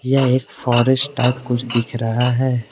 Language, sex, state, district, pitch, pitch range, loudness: Hindi, male, Arunachal Pradesh, Lower Dibang Valley, 125 Hz, 120-130 Hz, -18 LUFS